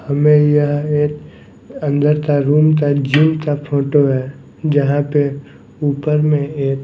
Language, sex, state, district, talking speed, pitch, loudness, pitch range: Hindi, male, Maharashtra, Mumbai Suburban, 140 wpm, 145 Hz, -15 LUFS, 140-150 Hz